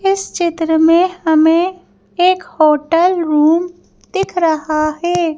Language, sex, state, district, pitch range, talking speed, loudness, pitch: Hindi, female, Madhya Pradesh, Bhopal, 320-360 Hz, 110 wpm, -14 LUFS, 335 Hz